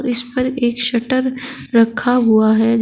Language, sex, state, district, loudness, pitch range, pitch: Hindi, female, Uttar Pradesh, Shamli, -15 LUFS, 230-255 Hz, 245 Hz